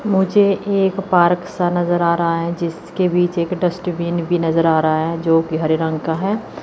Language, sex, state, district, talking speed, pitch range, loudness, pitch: Hindi, female, Chandigarh, Chandigarh, 210 wpm, 165-180 Hz, -18 LUFS, 175 Hz